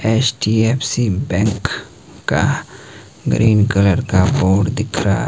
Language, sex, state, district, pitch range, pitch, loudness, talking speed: Hindi, male, Himachal Pradesh, Shimla, 100-120 Hz, 110 Hz, -16 LUFS, 100 wpm